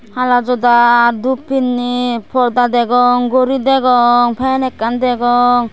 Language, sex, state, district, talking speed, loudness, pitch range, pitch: Chakma, female, Tripura, West Tripura, 115 wpm, -13 LUFS, 240-255 Hz, 245 Hz